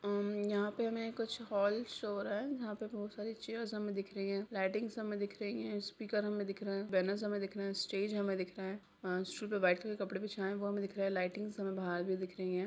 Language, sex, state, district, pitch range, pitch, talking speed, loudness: Hindi, female, Bihar, Jamui, 195-210 Hz, 205 Hz, 285 wpm, -39 LUFS